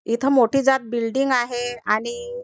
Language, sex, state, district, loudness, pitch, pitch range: Marathi, female, Maharashtra, Chandrapur, -21 LUFS, 245 Hz, 235-275 Hz